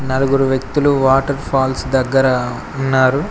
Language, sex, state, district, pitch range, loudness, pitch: Telugu, male, Telangana, Mahabubabad, 130-135 Hz, -16 LUFS, 135 Hz